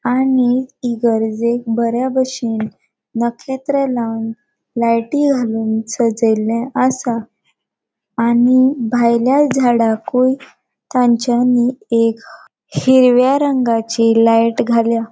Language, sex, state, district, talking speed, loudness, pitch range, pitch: Konkani, female, Goa, North and South Goa, 75 wpm, -15 LUFS, 230-255 Hz, 240 Hz